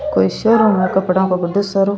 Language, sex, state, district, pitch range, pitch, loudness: Rajasthani, female, Rajasthan, Churu, 185-200 Hz, 190 Hz, -15 LUFS